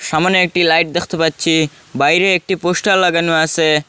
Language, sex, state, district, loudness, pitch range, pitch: Bengali, male, Assam, Hailakandi, -14 LUFS, 160-180 Hz, 165 Hz